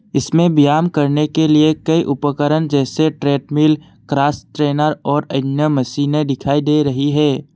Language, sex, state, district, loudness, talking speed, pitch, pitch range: Hindi, male, Assam, Kamrup Metropolitan, -16 LUFS, 145 wpm, 150 Hz, 140-155 Hz